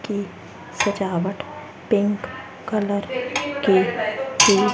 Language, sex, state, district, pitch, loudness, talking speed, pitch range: Hindi, female, Haryana, Rohtak, 205 Hz, -21 LUFS, 65 wpm, 200-255 Hz